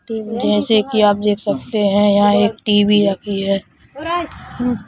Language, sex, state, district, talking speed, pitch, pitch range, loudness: Hindi, male, Madhya Pradesh, Bhopal, 135 wpm, 210 Hz, 205-225 Hz, -16 LUFS